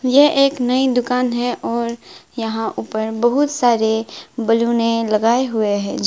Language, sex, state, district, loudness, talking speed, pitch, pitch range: Hindi, female, West Bengal, Alipurduar, -18 LUFS, 150 wpm, 235 Hz, 225-250 Hz